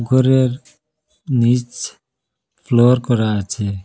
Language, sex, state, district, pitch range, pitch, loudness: Bengali, male, Assam, Hailakandi, 110-125 Hz, 120 Hz, -17 LUFS